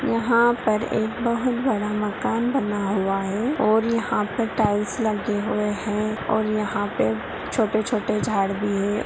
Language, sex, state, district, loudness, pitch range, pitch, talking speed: Hindi, female, Bihar, Purnia, -23 LUFS, 205-230 Hz, 215 Hz, 160 wpm